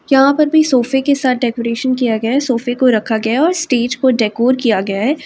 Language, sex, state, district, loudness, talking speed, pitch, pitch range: Hindi, female, Uttar Pradesh, Varanasi, -14 LUFS, 250 wpm, 250 Hz, 230-270 Hz